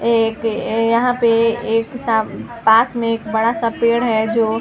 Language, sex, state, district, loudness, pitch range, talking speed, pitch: Hindi, female, Chhattisgarh, Sarguja, -17 LUFS, 225-235 Hz, 180 wpm, 230 Hz